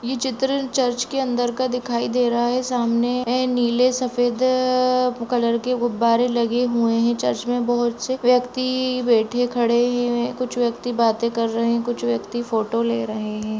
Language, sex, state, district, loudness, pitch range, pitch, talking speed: Hindi, female, Chhattisgarh, Raigarh, -21 LUFS, 235-250 Hz, 245 Hz, 190 wpm